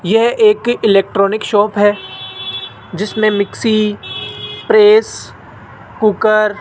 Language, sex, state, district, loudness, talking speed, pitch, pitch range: Hindi, male, Rajasthan, Jaipur, -13 LUFS, 90 wpm, 210 Hz, 195-220 Hz